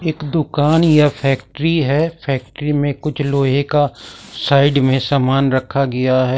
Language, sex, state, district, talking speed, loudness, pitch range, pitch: Hindi, male, Jharkhand, Ranchi, 150 wpm, -16 LUFS, 135-150 Hz, 140 Hz